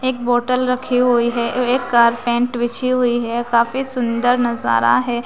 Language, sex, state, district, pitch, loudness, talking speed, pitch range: Hindi, female, Bihar, Kaimur, 240 Hz, -17 LUFS, 170 wpm, 235-250 Hz